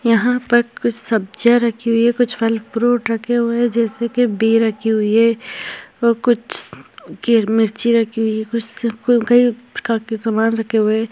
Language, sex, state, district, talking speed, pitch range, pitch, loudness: Hindi, female, Maharashtra, Chandrapur, 185 wpm, 225-240 Hz, 230 Hz, -17 LUFS